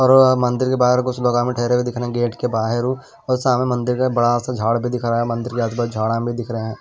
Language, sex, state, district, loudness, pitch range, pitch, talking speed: Hindi, male, Maharashtra, Washim, -19 LUFS, 120-125 Hz, 120 Hz, 310 wpm